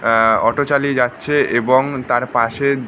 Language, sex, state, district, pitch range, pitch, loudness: Bengali, male, West Bengal, North 24 Parganas, 120-140 Hz, 130 Hz, -16 LUFS